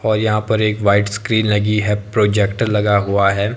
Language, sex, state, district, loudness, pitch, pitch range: Hindi, male, Himachal Pradesh, Shimla, -16 LUFS, 105 Hz, 100-110 Hz